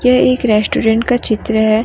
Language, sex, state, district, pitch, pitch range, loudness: Hindi, female, Jharkhand, Deoghar, 225 Hz, 220-250 Hz, -13 LUFS